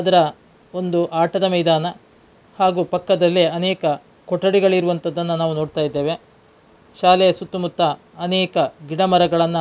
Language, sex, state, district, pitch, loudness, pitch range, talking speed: Kannada, male, Karnataka, Dakshina Kannada, 175 Hz, -19 LUFS, 165-185 Hz, 110 wpm